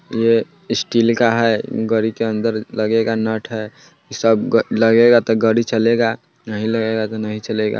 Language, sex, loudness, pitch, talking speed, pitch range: Bajjika, male, -17 LUFS, 115 Hz, 155 wpm, 110-115 Hz